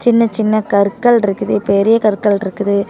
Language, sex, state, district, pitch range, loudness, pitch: Tamil, female, Tamil Nadu, Namakkal, 200-225 Hz, -14 LUFS, 210 Hz